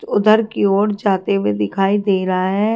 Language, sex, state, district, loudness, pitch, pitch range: Hindi, female, Haryana, Jhajjar, -17 LUFS, 200 Hz, 190-210 Hz